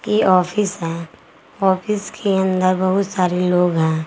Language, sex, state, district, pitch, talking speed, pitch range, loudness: Hindi, female, Jharkhand, Garhwa, 185 Hz, 145 wpm, 170-195 Hz, -18 LUFS